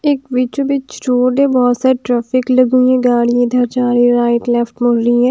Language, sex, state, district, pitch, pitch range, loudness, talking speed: Hindi, female, Bihar, Katihar, 250 Hz, 240-255 Hz, -13 LUFS, 235 wpm